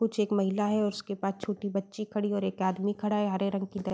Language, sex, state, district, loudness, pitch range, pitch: Hindi, female, Uttar Pradesh, Deoria, -30 LUFS, 195-210 Hz, 205 Hz